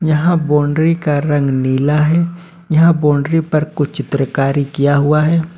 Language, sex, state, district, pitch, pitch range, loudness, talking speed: Hindi, male, Jharkhand, Ranchi, 150 Hz, 145-165 Hz, -14 LUFS, 150 wpm